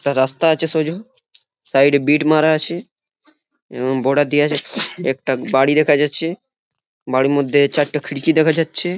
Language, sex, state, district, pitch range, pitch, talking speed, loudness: Bengali, male, West Bengal, Purulia, 140-165 Hz, 150 Hz, 145 wpm, -17 LUFS